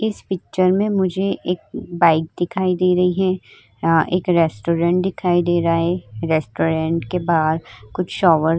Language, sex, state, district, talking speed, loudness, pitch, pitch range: Hindi, female, Uttar Pradesh, Hamirpur, 160 wpm, -19 LUFS, 175 Hz, 165-185 Hz